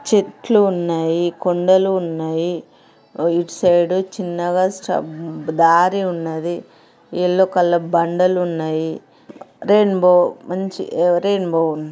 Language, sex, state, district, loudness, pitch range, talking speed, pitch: Telugu, female, Andhra Pradesh, Srikakulam, -18 LUFS, 170-190 Hz, 90 wpm, 175 Hz